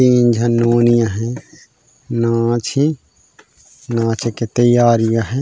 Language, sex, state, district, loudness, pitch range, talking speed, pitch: Chhattisgarhi, male, Chhattisgarh, Raigarh, -16 LUFS, 115-120 Hz, 135 wpm, 120 Hz